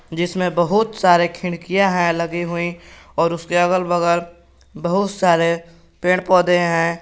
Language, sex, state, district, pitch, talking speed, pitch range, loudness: Hindi, male, Jharkhand, Garhwa, 175 Hz, 135 wpm, 170-180 Hz, -18 LUFS